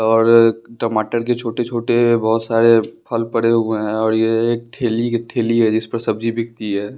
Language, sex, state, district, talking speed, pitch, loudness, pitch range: Hindi, male, Bihar, West Champaran, 190 wpm, 115 Hz, -17 LUFS, 110-115 Hz